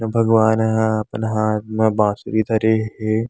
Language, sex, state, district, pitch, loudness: Chhattisgarhi, male, Chhattisgarh, Bastar, 110 Hz, -18 LUFS